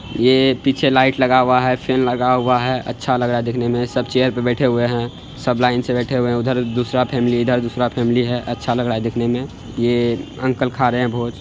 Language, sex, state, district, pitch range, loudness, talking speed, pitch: Hindi, male, Bihar, Araria, 120-130 Hz, -18 LUFS, 245 wpm, 125 Hz